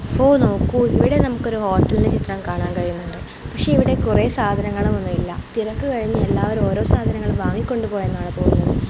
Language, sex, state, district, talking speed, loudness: Malayalam, female, Kerala, Kozhikode, 140 wpm, -19 LUFS